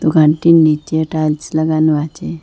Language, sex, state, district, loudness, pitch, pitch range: Bengali, female, Assam, Hailakandi, -14 LUFS, 155 Hz, 155-160 Hz